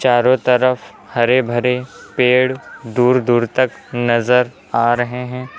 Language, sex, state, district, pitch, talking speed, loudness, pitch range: Hindi, male, Uttar Pradesh, Lucknow, 125 Hz, 130 wpm, -16 LUFS, 120-130 Hz